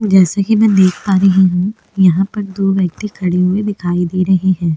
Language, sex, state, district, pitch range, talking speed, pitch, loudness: Hindi, female, Chhattisgarh, Bastar, 180-200 Hz, 225 wpm, 190 Hz, -14 LUFS